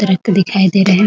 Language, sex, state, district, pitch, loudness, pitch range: Hindi, female, Bihar, Muzaffarpur, 195 Hz, -12 LUFS, 190-200 Hz